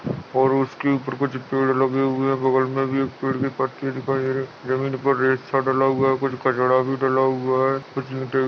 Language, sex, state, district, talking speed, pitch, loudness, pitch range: Hindi, male, Uttarakhand, Uttarkashi, 250 wpm, 135 Hz, -22 LUFS, 130-135 Hz